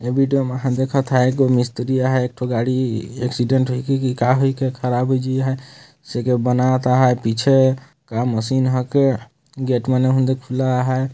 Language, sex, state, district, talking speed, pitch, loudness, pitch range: Hindi, male, Chhattisgarh, Jashpur, 205 wpm, 130 Hz, -19 LUFS, 125-130 Hz